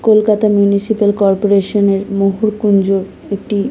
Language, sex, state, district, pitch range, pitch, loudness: Bengali, female, West Bengal, Kolkata, 195-210 Hz, 200 Hz, -13 LUFS